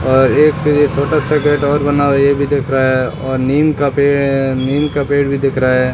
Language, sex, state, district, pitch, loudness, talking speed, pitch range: Hindi, male, Rajasthan, Bikaner, 140 Hz, -13 LUFS, 275 wpm, 130-145 Hz